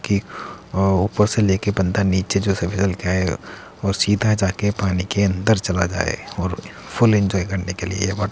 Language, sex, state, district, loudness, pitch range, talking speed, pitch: Hindi, male, Uttar Pradesh, Muzaffarnagar, -20 LUFS, 95-100 Hz, 190 wpm, 95 Hz